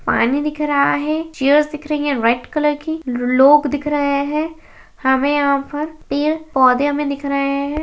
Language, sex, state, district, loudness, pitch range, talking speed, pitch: Hindi, female, Uttarakhand, Tehri Garhwal, -17 LUFS, 280-300 Hz, 185 wpm, 290 Hz